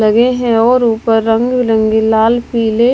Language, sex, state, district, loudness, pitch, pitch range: Hindi, female, Maharashtra, Gondia, -12 LUFS, 230 Hz, 220-240 Hz